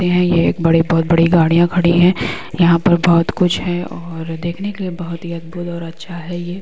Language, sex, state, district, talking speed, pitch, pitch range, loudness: Hindi, female, Uttar Pradesh, Budaun, 200 wpm, 170 Hz, 170-175 Hz, -16 LUFS